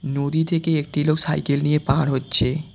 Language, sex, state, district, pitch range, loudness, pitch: Bengali, male, West Bengal, Cooch Behar, 140-155 Hz, -19 LUFS, 150 Hz